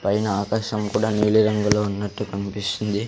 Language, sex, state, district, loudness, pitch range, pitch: Telugu, male, Andhra Pradesh, Sri Satya Sai, -22 LUFS, 100-105 Hz, 105 Hz